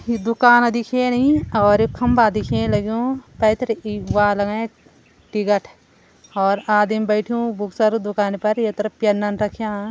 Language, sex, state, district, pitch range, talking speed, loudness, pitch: Garhwali, female, Uttarakhand, Tehri Garhwal, 205-235 Hz, 135 wpm, -19 LUFS, 215 Hz